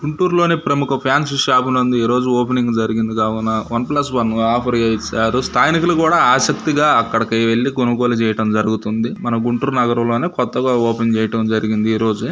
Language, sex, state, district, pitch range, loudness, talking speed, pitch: Telugu, male, Andhra Pradesh, Guntur, 110-130 Hz, -16 LUFS, 150 wpm, 120 Hz